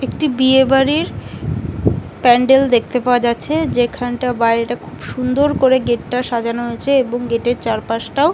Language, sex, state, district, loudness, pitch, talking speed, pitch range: Bengali, female, West Bengal, Kolkata, -16 LUFS, 245 Hz, 165 wpm, 240-265 Hz